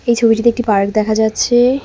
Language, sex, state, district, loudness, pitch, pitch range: Bengali, female, West Bengal, Cooch Behar, -14 LUFS, 230 Hz, 215-240 Hz